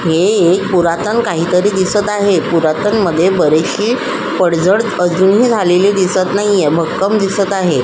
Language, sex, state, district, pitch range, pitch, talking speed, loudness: Marathi, female, Maharashtra, Solapur, 175-205 Hz, 190 Hz, 140 wpm, -13 LUFS